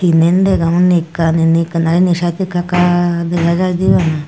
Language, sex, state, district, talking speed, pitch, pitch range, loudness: Chakma, female, Tripura, Dhalai, 195 wpm, 175 Hz, 165-180 Hz, -13 LUFS